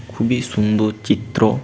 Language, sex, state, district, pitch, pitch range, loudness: Bengali, male, West Bengal, Paschim Medinipur, 110 Hz, 105-120 Hz, -19 LUFS